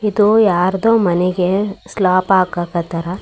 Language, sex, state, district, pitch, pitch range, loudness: Kannada, male, Karnataka, Raichur, 185 Hz, 180-210 Hz, -15 LUFS